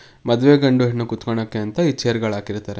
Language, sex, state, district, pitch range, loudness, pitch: Kannada, male, Karnataka, Mysore, 110-130 Hz, -19 LUFS, 115 Hz